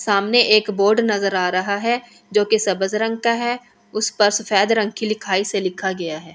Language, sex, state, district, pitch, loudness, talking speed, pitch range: Hindi, female, Delhi, New Delhi, 210 Hz, -19 LUFS, 200 wpm, 195-225 Hz